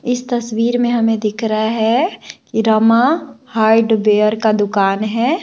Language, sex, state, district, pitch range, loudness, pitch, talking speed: Hindi, female, Bihar, West Champaran, 215-240 Hz, -15 LUFS, 225 Hz, 130 wpm